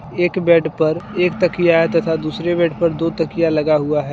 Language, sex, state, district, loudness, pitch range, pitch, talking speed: Hindi, male, Jharkhand, Deoghar, -17 LUFS, 155-175 Hz, 165 Hz, 205 wpm